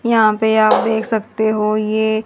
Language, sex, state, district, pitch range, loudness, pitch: Hindi, female, Haryana, Jhajjar, 215-220 Hz, -16 LUFS, 220 Hz